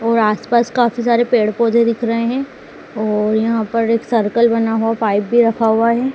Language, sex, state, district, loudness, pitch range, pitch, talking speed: Hindi, female, Madhya Pradesh, Dhar, -16 LUFS, 225-235 Hz, 230 Hz, 205 wpm